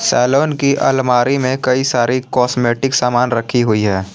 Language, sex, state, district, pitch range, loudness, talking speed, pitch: Hindi, male, Jharkhand, Palamu, 120-135 Hz, -15 LUFS, 160 wpm, 125 Hz